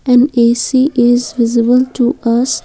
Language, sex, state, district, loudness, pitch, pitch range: English, female, Assam, Kamrup Metropolitan, -12 LUFS, 245 Hz, 235-255 Hz